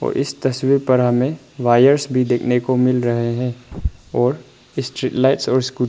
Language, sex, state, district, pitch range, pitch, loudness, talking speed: Hindi, male, Arunachal Pradesh, Papum Pare, 125-130 Hz, 125 Hz, -18 LUFS, 165 wpm